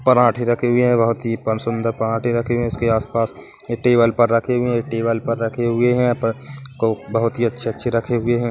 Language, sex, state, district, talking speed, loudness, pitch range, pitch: Hindi, male, Chhattisgarh, Kabirdham, 240 wpm, -19 LUFS, 115-120 Hz, 115 Hz